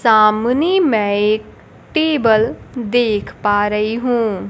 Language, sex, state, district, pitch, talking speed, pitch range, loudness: Hindi, male, Bihar, Kaimur, 220 Hz, 105 wpm, 210-245 Hz, -16 LUFS